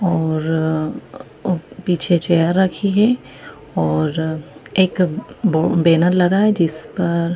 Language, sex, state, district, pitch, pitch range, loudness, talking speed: Hindi, female, Madhya Pradesh, Bhopal, 170 Hz, 160-185 Hz, -18 LUFS, 105 wpm